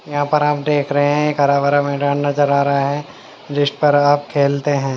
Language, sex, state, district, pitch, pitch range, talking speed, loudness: Hindi, male, Haryana, Jhajjar, 145 Hz, 140-145 Hz, 230 wpm, -16 LUFS